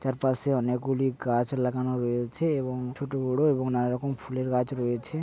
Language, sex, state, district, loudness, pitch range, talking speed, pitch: Bengali, male, West Bengal, Paschim Medinipur, -28 LUFS, 125-135 Hz, 170 wpm, 130 Hz